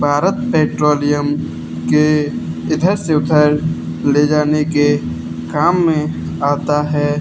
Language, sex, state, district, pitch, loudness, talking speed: Hindi, male, Haryana, Charkhi Dadri, 145 Hz, -16 LUFS, 110 wpm